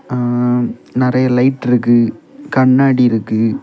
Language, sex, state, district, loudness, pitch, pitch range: Tamil, male, Tamil Nadu, Kanyakumari, -14 LUFS, 125 Hz, 120-130 Hz